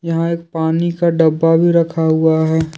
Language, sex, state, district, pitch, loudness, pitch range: Hindi, male, Jharkhand, Deoghar, 165 Hz, -15 LUFS, 160-170 Hz